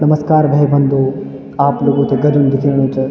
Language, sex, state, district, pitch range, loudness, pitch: Garhwali, male, Uttarakhand, Tehri Garhwal, 135-145 Hz, -13 LUFS, 140 Hz